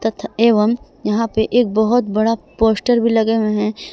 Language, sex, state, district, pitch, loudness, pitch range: Hindi, female, Jharkhand, Palamu, 225 Hz, -17 LUFS, 215-230 Hz